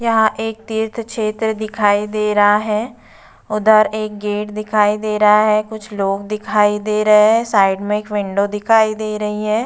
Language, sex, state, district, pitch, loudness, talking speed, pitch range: Hindi, female, Uttar Pradesh, Budaun, 215 Hz, -16 LUFS, 180 wpm, 210-220 Hz